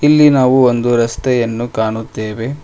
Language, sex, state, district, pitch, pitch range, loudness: Kannada, male, Karnataka, Koppal, 120 Hz, 115-130 Hz, -14 LUFS